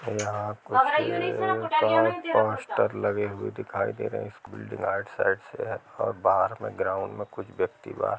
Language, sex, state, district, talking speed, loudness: Hindi, male, Chhattisgarh, Rajnandgaon, 125 wpm, -27 LUFS